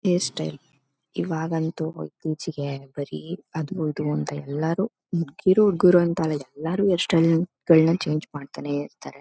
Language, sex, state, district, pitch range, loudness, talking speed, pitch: Kannada, female, Karnataka, Mysore, 145-170 Hz, -24 LUFS, 100 wpm, 160 Hz